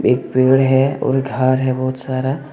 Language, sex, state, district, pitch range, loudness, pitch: Hindi, male, Jharkhand, Deoghar, 130-135 Hz, -16 LUFS, 130 Hz